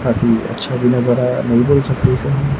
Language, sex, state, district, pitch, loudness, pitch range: Hindi, male, Maharashtra, Gondia, 125 Hz, -15 LUFS, 120-135 Hz